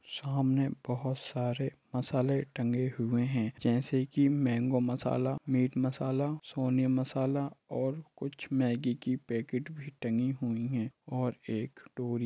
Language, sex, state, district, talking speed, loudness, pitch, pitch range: Hindi, male, Jharkhand, Sahebganj, 130 wpm, -32 LUFS, 130 Hz, 125-135 Hz